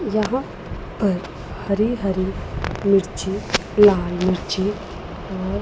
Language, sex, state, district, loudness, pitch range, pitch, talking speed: Hindi, female, Punjab, Pathankot, -21 LUFS, 190-205 Hz, 195 Hz, 95 wpm